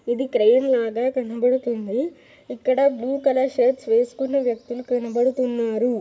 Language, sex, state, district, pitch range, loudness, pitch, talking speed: Telugu, female, Telangana, Nalgonda, 240-260 Hz, -21 LUFS, 250 Hz, 110 wpm